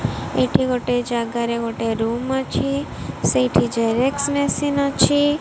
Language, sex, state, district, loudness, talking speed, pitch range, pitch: Odia, female, Odisha, Malkangiri, -20 LUFS, 110 wpm, 230-280 Hz, 240 Hz